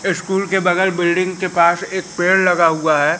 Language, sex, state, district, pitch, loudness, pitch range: Hindi, male, Madhya Pradesh, Katni, 180 Hz, -16 LUFS, 170-190 Hz